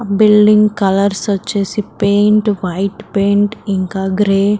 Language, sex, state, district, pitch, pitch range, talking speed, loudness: Telugu, female, Telangana, Karimnagar, 200 Hz, 195-210 Hz, 115 wpm, -14 LUFS